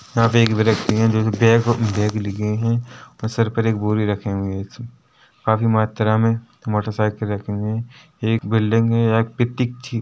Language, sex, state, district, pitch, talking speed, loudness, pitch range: Hindi, male, Chhattisgarh, Rajnandgaon, 110 Hz, 175 wpm, -20 LUFS, 105-115 Hz